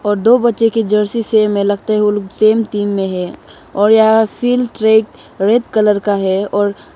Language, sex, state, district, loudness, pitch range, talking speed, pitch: Hindi, female, Arunachal Pradesh, Lower Dibang Valley, -14 LUFS, 205-225 Hz, 205 wpm, 215 Hz